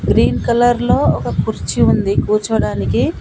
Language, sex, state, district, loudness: Telugu, female, Telangana, Komaram Bheem, -15 LUFS